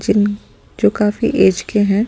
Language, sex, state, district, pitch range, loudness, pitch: Hindi, male, Delhi, New Delhi, 200-210 Hz, -16 LUFS, 205 Hz